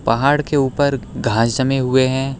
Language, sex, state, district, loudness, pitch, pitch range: Hindi, male, Uttar Pradesh, Lucknow, -17 LUFS, 130 Hz, 125-140 Hz